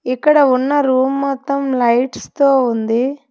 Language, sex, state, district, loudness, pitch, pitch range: Telugu, female, Telangana, Hyderabad, -15 LUFS, 265 Hz, 255-280 Hz